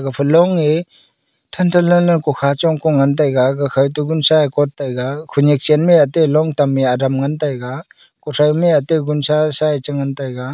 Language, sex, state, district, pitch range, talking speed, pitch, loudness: Wancho, male, Arunachal Pradesh, Longding, 140-155 Hz, 135 wpm, 150 Hz, -15 LUFS